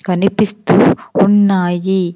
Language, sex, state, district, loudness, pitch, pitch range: Telugu, female, Andhra Pradesh, Sri Satya Sai, -13 LUFS, 195 Hz, 180-205 Hz